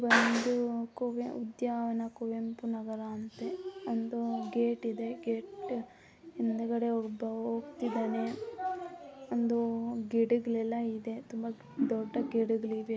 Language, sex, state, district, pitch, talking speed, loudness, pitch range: Kannada, female, Karnataka, Mysore, 230 Hz, 95 wpm, -34 LUFS, 225-245 Hz